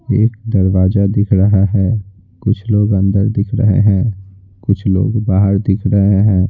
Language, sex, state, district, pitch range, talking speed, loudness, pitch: Hindi, male, Bihar, Patna, 95-105 Hz, 155 wpm, -14 LUFS, 100 Hz